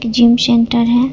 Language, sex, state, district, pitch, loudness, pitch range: Hindi, female, Jharkhand, Ranchi, 235 Hz, -12 LUFS, 235-245 Hz